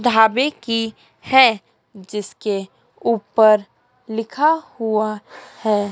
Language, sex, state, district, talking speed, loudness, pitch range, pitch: Hindi, female, Madhya Pradesh, Dhar, 80 wpm, -19 LUFS, 210-235 Hz, 220 Hz